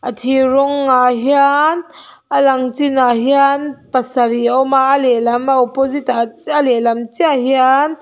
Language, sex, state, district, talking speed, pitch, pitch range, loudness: Mizo, female, Mizoram, Aizawl, 170 wpm, 265 Hz, 250-280 Hz, -14 LUFS